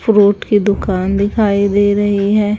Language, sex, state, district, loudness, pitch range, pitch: Hindi, female, Haryana, Charkhi Dadri, -14 LUFS, 200-205 Hz, 205 Hz